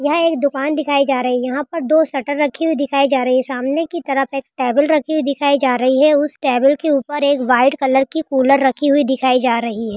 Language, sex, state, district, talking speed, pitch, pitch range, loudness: Hindi, female, Rajasthan, Churu, 260 wpm, 280 Hz, 260-295 Hz, -16 LUFS